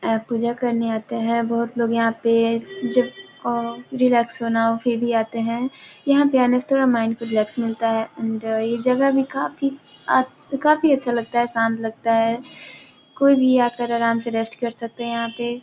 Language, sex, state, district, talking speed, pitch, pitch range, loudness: Hindi, female, Bihar, Gopalganj, 200 wpm, 235 Hz, 230-250 Hz, -21 LUFS